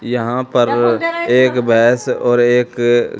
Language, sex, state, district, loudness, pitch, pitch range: Hindi, male, Haryana, Charkhi Dadri, -14 LUFS, 120 Hz, 120-125 Hz